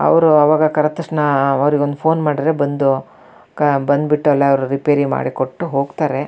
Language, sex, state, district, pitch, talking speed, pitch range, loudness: Kannada, female, Karnataka, Shimoga, 145 Hz, 155 wpm, 140-150 Hz, -16 LUFS